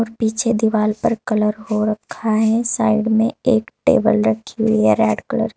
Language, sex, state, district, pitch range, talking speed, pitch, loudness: Hindi, female, Uttar Pradesh, Saharanpur, 210-225 Hz, 185 wpm, 220 Hz, -18 LUFS